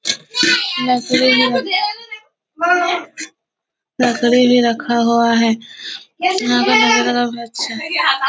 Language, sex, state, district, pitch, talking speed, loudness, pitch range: Hindi, female, Chhattisgarh, Korba, 250 Hz, 100 wpm, -15 LUFS, 235-350 Hz